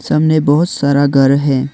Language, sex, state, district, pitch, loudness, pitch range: Hindi, male, Arunachal Pradesh, Longding, 140 Hz, -12 LUFS, 140-155 Hz